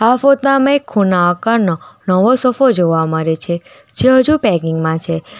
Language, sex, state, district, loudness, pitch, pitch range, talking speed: Gujarati, female, Gujarat, Valsad, -14 LUFS, 190 Hz, 165-260 Hz, 175 wpm